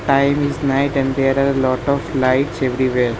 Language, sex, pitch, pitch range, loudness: English, male, 135 Hz, 130-140 Hz, -17 LUFS